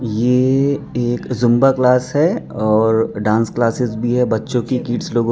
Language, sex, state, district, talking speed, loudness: Hindi, female, Arunachal Pradesh, Papum Pare, 160 wpm, -16 LUFS